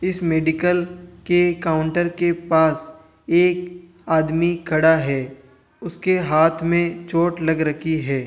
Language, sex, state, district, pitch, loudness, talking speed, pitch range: Hindi, male, Rajasthan, Jaipur, 165 Hz, -19 LUFS, 125 wpm, 160-175 Hz